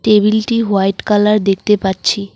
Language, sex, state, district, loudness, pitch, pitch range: Bengali, female, West Bengal, Cooch Behar, -14 LUFS, 210 Hz, 195-215 Hz